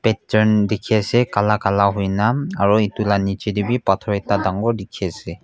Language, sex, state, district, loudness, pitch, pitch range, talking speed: Nagamese, male, Nagaland, Kohima, -19 LUFS, 105 Hz, 100-110 Hz, 165 wpm